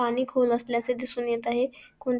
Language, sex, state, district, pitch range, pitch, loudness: Marathi, female, Maharashtra, Sindhudurg, 235-255 Hz, 250 Hz, -27 LUFS